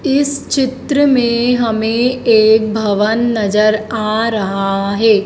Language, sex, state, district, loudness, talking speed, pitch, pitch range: Hindi, female, Madhya Pradesh, Dhar, -14 LUFS, 115 wpm, 225 Hz, 215-245 Hz